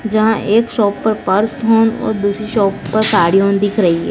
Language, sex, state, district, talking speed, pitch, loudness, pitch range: Hindi, female, Madhya Pradesh, Dhar, 205 wpm, 215 Hz, -14 LUFS, 200-220 Hz